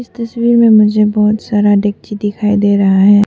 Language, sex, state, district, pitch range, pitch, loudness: Hindi, female, Arunachal Pradesh, Papum Pare, 205-220 Hz, 210 Hz, -11 LUFS